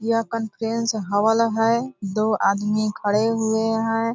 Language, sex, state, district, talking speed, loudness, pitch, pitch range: Hindi, female, Bihar, Purnia, 130 wpm, -22 LUFS, 225 Hz, 215-230 Hz